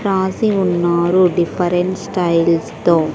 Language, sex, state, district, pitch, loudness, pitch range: Telugu, female, Andhra Pradesh, Sri Satya Sai, 175 Hz, -16 LUFS, 170-190 Hz